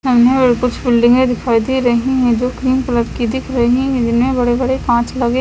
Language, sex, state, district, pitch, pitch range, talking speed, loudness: Hindi, female, Himachal Pradesh, Shimla, 250 Hz, 240-260 Hz, 210 wpm, -14 LUFS